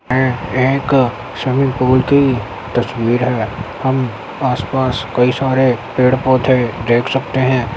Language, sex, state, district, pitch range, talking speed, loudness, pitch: Hindi, male, Uttar Pradesh, Jyotiba Phule Nagar, 120-130 Hz, 115 wpm, -15 LUFS, 130 Hz